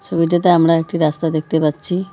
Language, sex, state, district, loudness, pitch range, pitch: Bengali, female, West Bengal, Cooch Behar, -16 LUFS, 160-175 Hz, 165 Hz